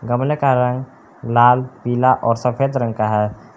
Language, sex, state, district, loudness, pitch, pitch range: Hindi, male, Jharkhand, Palamu, -17 LUFS, 125 Hz, 115-130 Hz